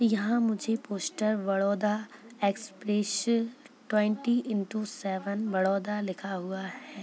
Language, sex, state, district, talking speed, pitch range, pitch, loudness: Hindi, female, Bihar, Purnia, 100 wpm, 195-225 Hz, 210 Hz, -30 LUFS